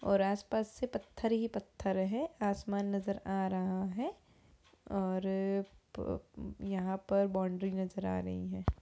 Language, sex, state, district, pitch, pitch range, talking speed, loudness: Hindi, female, Uttar Pradesh, Budaun, 195 Hz, 190-200 Hz, 150 wpm, -36 LUFS